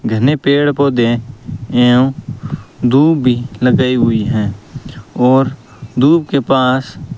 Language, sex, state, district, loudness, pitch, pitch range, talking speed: Hindi, male, Rajasthan, Bikaner, -13 LUFS, 130 Hz, 120-140 Hz, 110 wpm